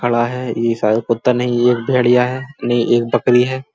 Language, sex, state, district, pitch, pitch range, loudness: Hindi, male, Uttar Pradesh, Muzaffarnagar, 120 Hz, 120-125 Hz, -16 LUFS